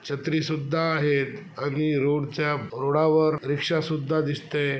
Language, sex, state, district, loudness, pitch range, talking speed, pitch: Marathi, male, Maharashtra, Chandrapur, -25 LUFS, 145-155 Hz, 125 wpm, 150 Hz